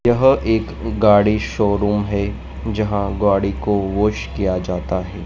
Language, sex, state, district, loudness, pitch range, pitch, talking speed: Hindi, male, Madhya Pradesh, Dhar, -18 LUFS, 95-105 Hz, 100 Hz, 135 wpm